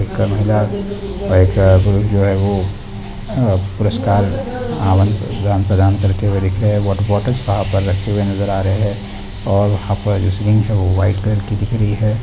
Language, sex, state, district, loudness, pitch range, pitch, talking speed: Hindi, male, Bihar, Darbhanga, -16 LUFS, 100-105 Hz, 100 Hz, 165 wpm